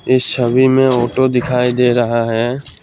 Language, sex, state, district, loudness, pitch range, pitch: Hindi, male, Assam, Kamrup Metropolitan, -14 LUFS, 120-130 Hz, 125 Hz